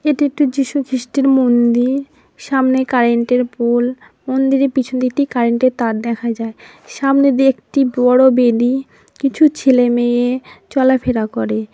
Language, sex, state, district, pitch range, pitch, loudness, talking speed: Bengali, female, West Bengal, Paschim Medinipur, 240-270 Hz, 255 Hz, -15 LUFS, 135 wpm